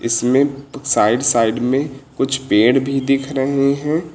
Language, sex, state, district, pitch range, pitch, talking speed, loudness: Hindi, male, Uttar Pradesh, Lucknow, 125-140 Hz, 135 Hz, 145 wpm, -17 LUFS